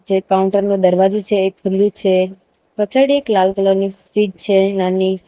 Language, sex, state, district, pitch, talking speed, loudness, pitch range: Gujarati, female, Gujarat, Valsad, 195 Hz, 180 wpm, -15 LUFS, 190-205 Hz